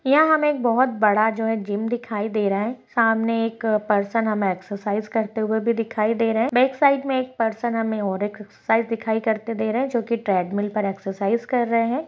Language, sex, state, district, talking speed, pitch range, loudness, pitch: Hindi, female, Bihar, Muzaffarpur, 225 wpm, 210-235 Hz, -22 LUFS, 225 Hz